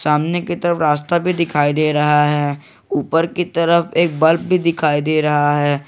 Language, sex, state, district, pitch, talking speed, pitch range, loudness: Hindi, male, Jharkhand, Garhwa, 155 Hz, 195 wpm, 150-170 Hz, -16 LUFS